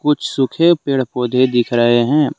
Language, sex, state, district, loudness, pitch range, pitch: Hindi, male, Jharkhand, Deoghar, -15 LUFS, 120-150 Hz, 130 Hz